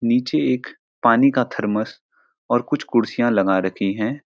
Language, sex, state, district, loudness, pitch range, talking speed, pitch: Hindi, male, Uttarakhand, Uttarkashi, -20 LUFS, 105-140 Hz, 155 wpm, 120 Hz